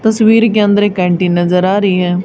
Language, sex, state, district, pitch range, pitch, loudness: Hindi, female, Haryana, Charkhi Dadri, 180-215 Hz, 195 Hz, -11 LUFS